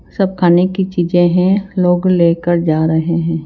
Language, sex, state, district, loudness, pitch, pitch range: Hindi, female, Himachal Pradesh, Shimla, -14 LUFS, 175 Hz, 170-185 Hz